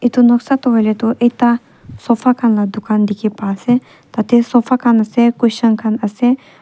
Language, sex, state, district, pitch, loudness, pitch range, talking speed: Nagamese, female, Nagaland, Kohima, 235 Hz, -14 LUFS, 220-245 Hz, 190 wpm